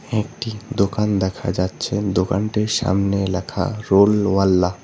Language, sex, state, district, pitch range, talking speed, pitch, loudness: Bengali, male, West Bengal, Cooch Behar, 95-105 Hz, 125 wpm, 100 Hz, -20 LUFS